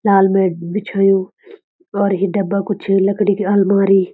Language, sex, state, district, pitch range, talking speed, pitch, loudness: Garhwali, female, Uttarakhand, Uttarkashi, 195-205 Hz, 160 wpm, 195 Hz, -16 LUFS